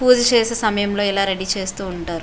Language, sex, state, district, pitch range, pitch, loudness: Telugu, female, Andhra Pradesh, Visakhapatnam, 190-225 Hz, 200 Hz, -19 LUFS